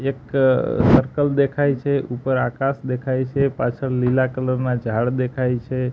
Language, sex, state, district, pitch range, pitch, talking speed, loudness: Gujarati, male, Gujarat, Gandhinagar, 125-135 Hz, 130 Hz, 150 wpm, -20 LUFS